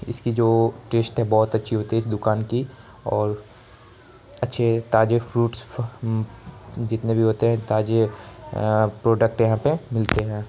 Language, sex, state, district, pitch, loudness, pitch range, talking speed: Maithili, male, Bihar, Samastipur, 115 Hz, -22 LUFS, 110-120 Hz, 145 wpm